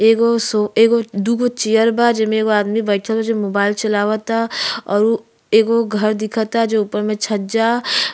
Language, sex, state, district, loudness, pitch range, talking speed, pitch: Bhojpuri, female, Uttar Pradesh, Gorakhpur, -17 LUFS, 210-230 Hz, 160 wpm, 220 Hz